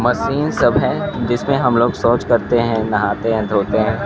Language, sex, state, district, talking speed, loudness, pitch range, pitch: Hindi, male, Bihar, Kaimur, 175 wpm, -17 LUFS, 110-120 Hz, 115 Hz